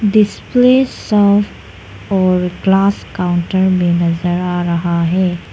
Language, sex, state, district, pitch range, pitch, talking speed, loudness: Hindi, female, Arunachal Pradesh, Lower Dibang Valley, 175-200 Hz, 180 Hz, 110 wpm, -14 LUFS